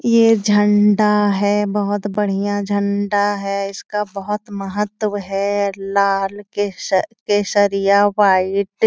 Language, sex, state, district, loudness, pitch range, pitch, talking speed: Hindi, female, Bihar, Jahanabad, -18 LUFS, 200-205 Hz, 205 Hz, 110 wpm